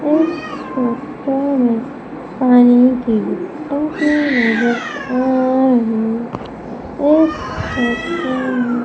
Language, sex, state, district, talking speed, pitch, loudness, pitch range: Hindi, female, Madhya Pradesh, Umaria, 95 wpm, 260 Hz, -16 LUFS, 245-290 Hz